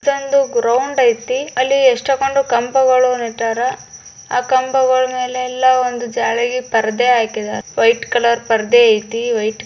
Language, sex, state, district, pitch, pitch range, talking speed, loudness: Kannada, female, Karnataka, Bijapur, 250 Hz, 235-260 Hz, 85 wpm, -15 LUFS